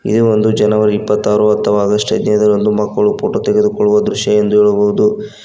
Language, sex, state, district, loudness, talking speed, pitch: Kannada, male, Karnataka, Koppal, -13 LUFS, 145 wpm, 110 Hz